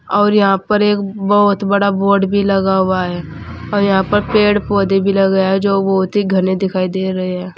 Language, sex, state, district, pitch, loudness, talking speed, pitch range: Hindi, female, Uttar Pradesh, Saharanpur, 195 Hz, -14 LUFS, 205 wpm, 190-200 Hz